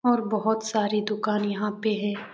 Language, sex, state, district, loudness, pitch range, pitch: Hindi, male, Bihar, Jamui, -26 LUFS, 210-220 Hz, 215 Hz